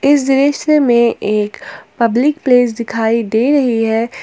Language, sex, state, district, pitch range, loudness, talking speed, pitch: Hindi, female, Jharkhand, Palamu, 225-275 Hz, -14 LUFS, 140 wpm, 235 Hz